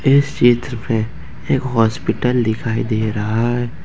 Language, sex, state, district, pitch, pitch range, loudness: Hindi, male, Jharkhand, Ranchi, 115 Hz, 110-125 Hz, -18 LUFS